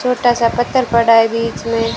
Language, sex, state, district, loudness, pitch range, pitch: Hindi, female, Rajasthan, Bikaner, -14 LUFS, 230-245 Hz, 230 Hz